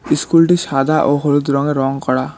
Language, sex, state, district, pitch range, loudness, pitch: Bengali, male, West Bengal, Cooch Behar, 135-155 Hz, -15 LUFS, 145 Hz